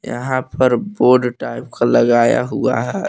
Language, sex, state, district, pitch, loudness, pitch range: Hindi, male, Jharkhand, Palamu, 125 Hz, -16 LUFS, 120-130 Hz